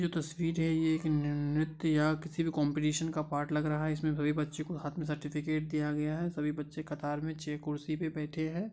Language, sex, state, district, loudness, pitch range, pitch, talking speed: Hindi, male, Bihar, Madhepura, -34 LUFS, 150-160 Hz, 155 Hz, 225 wpm